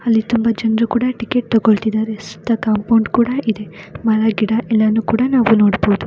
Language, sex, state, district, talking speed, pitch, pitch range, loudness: Kannada, female, Karnataka, Mysore, 160 wpm, 220 Hz, 215-230 Hz, -16 LUFS